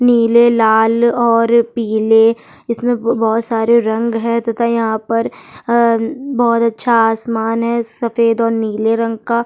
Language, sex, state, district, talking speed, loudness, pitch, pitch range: Hindi, female, Chhattisgarh, Sukma, 145 wpm, -14 LUFS, 230 Hz, 225-235 Hz